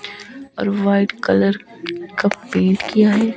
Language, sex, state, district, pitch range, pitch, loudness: Hindi, female, Himachal Pradesh, Shimla, 200-230 Hz, 205 Hz, -18 LUFS